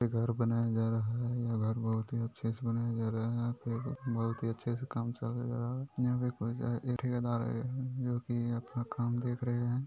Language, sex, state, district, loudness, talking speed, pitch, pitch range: Hindi, male, Bihar, Purnia, -35 LUFS, 230 wpm, 120 Hz, 115-125 Hz